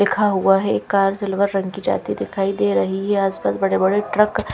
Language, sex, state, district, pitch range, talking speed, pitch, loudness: Hindi, female, Chhattisgarh, Raipur, 190-200 Hz, 225 wpm, 195 Hz, -19 LUFS